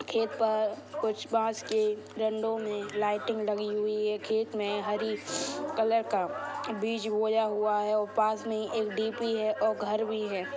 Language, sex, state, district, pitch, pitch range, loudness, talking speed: Hindi, female, Bihar, Sitamarhi, 215 Hz, 210-225 Hz, -30 LUFS, 175 wpm